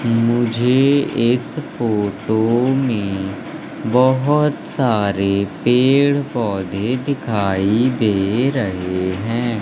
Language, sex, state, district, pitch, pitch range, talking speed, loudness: Hindi, male, Madhya Pradesh, Katni, 115 Hz, 100-130 Hz, 75 wpm, -18 LUFS